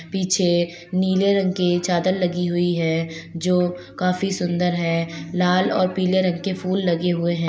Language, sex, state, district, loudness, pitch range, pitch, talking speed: Hindi, female, Uttar Pradesh, Deoria, -21 LUFS, 175-185 Hz, 180 Hz, 170 wpm